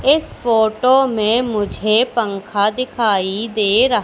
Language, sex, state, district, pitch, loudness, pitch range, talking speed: Hindi, female, Madhya Pradesh, Katni, 220 Hz, -16 LUFS, 210-245 Hz, 120 wpm